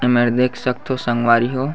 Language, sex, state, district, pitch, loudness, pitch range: Chhattisgarhi, male, Chhattisgarh, Bastar, 125 Hz, -18 LUFS, 120-130 Hz